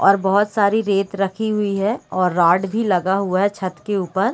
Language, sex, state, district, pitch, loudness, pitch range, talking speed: Hindi, female, Bihar, Gaya, 195 Hz, -19 LUFS, 185-205 Hz, 220 wpm